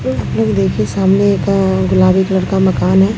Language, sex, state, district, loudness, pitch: Hindi, female, Bihar, Katihar, -13 LUFS, 185 Hz